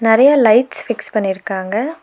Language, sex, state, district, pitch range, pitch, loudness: Tamil, female, Tamil Nadu, Nilgiris, 195-260 Hz, 225 Hz, -15 LUFS